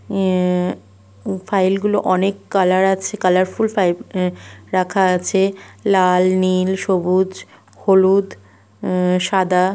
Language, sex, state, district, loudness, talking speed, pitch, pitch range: Bengali, female, West Bengal, Malda, -17 LUFS, 105 wpm, 185 Hz, 180-190 Hz